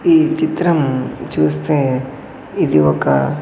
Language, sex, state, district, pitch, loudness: Telugu, male, Andhra Pradesh, Sri Satya Sai, 130 Hz, -16 LUFS